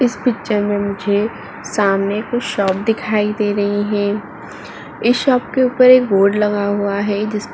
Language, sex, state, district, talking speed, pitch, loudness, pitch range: Hindi, female, Uttar Pradesh, Muzaffarnagar, 175 wpm, 210 Hz, -16 LUFS, 205-235 Hz